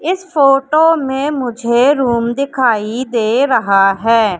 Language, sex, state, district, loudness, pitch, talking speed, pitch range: Hindi, female, Madhya Pradesh, Katni, -13 LUFS, 255 Hz, 125 wpm, 230-280 Hz